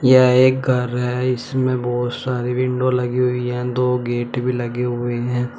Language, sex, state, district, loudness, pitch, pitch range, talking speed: Hindi, male, Uttar Pradesh, Shamli, -19 LUFS, 125 Hz, 120-125 Hz, 180 wpm